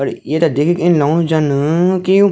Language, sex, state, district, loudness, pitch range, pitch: Garhwali, female, Uttarakhand, Tehri Garhwal, -14 LUFS, 150-175 Hz, 165 Hz